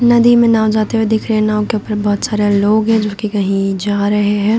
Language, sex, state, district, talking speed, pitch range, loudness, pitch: Hindi, female, Bihar, Darbhanga, 275 wpm, 205-220 Hz, -14 LUFS, 215 Hz